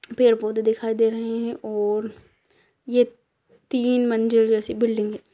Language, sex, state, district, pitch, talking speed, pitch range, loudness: Hindi, female, Bihar, Kishanganj, 225 Hz, 135 wpm, 220-240 Hz, -22 LUFS